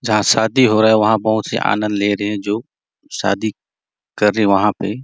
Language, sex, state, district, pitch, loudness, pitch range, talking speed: Hindi, male, Chhattisgarh, Bastar, 105 Hz, -16 LUFS, 105-110 Hz, 240 wpm